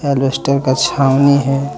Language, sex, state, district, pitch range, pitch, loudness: Hindi, male, Jharkhand, Deoghar, 135-140 Hz, 135 Hz, -14 LUFS